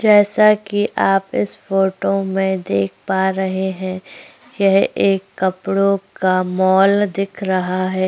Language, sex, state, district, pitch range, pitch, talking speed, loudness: Hindi, female, Chhattisgarh, Korba, 185-195 Hz, 190 Hz, 135 wpm, -17 LUFS